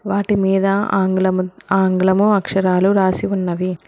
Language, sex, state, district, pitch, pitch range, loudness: Telugu, female, Telangana, Hyderabad, 190 Hz, 185-195 Hz, -17 LUFS